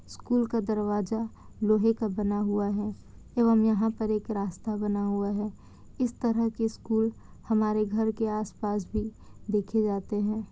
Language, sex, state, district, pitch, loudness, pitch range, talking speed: Hindi, female, Bihar, Kishanganj, 215 Hz, -28 LUFS, 205-225 Hz, 150 wpm